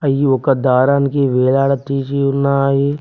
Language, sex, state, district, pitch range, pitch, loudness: Telugu, male, Telangana, Mahabubabad, 135-140 Hz, 140 Hz, -15 LUFS